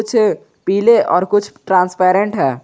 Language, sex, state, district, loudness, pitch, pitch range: Hindi, male, Jharkhand, Garhwa, -15 LUFS, 190 Hz, 180-205 Hz